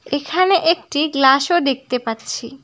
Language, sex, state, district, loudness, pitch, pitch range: Bengali, female, West Bengal, Cooch Behar, -17 LUFS, 280 Hz, 265-330 Hz